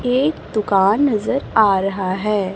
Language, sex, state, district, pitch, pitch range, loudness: Hindi, female, Chhattisgarh, Raipur, 210 Hz, 195-235 Hz, -18 LUFS